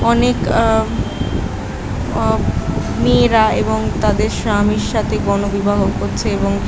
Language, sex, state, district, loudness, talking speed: Bengali, female, West Bengal, Jhargram, -16 LUFS, 110 wpm